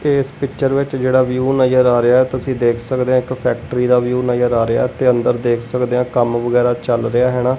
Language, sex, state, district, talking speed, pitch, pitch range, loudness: Punjabi, male, Punjab, Kapurthala, 235 wpm, 125 Hz, 120-130 Hz, -16 LUFS